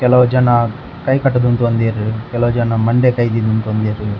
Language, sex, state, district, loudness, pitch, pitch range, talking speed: Tulu, male, Karnataka, Dakshina Kannada, -15 LUFS, 120 Hz, 110-125 Hz, 145 wpm